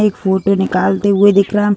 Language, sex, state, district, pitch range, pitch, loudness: Hindi, female, Uttar Pradesh, Deoria, 195-205 Hz, 200 Hz, -13 LUFS